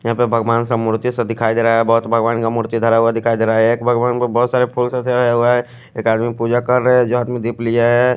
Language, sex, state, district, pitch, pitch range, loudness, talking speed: Hindi, male, Odisha, Khordha, 120 Hz, 115-125 Hz, -16 LUFS, 280 wpm